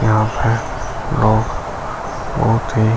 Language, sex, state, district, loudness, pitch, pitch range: Hindi, male, Uttar Pradesh, Gorakhpur, -19 LUFS, 110 Hz, 110-115 Hz